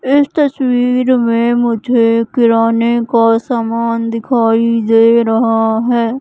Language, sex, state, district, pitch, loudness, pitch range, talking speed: Hindi, female, Madhya Pradesh, Katni, 230 Hz, -12 LUFS, 230-245 Hz, 105 wpm